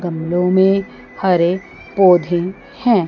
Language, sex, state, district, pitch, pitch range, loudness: Hindi, female, Chandigarh, Chandigarh, 185 Hz, 175-195 Hz, -16 LUFS